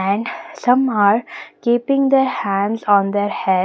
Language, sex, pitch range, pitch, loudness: English, female, 200-255 Hz, 215 Hz, -17 LUFS